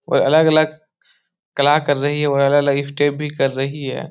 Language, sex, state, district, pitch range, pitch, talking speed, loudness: Hindi, male, Bihar, Supaul, 140-150 Hz, 145 Hz, 190 wpm, -17 LUFS